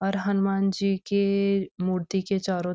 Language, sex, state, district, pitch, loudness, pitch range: Hindi, female, Uttarakhand, Uttarkashi, 195 Hz, -25 LUFS, 185-200 Hz